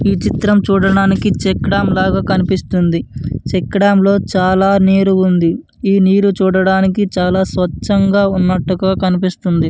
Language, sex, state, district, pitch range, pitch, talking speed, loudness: Telugu, male, Andhra Pradesh, Anantapur, 185-195 Hz, 190 Hz, 110 wpm, -13 LUFS